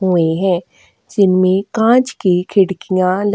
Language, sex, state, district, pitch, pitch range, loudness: Hindi, female, Goa, North and South Goa, 190 Hz, 185-205 Hz, -15 LUFS